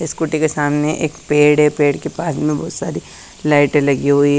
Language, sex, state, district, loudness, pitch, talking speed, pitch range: Hindi, female, Haryana, Charkhi Dadri, -16 LUFS, 150 Hz, 205 wpm, 145-155 Hz